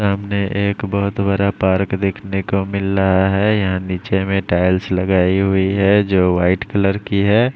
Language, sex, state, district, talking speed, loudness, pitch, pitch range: Hindi, male, Maharashtra, Mumbai Suburban, 175 wpm, -17 LUFS, 95 Hz, 95-100 Hz